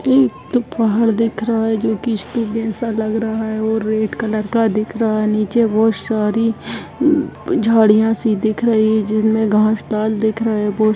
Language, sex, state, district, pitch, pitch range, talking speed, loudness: Hindi, female, Bihar, Kishanganj, 220 Hz, 215-225 Hz, 200 wpm, -17 LUFS